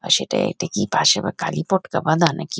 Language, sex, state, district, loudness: Bengali, female, West Bengal, Kolkata, -20 LUFS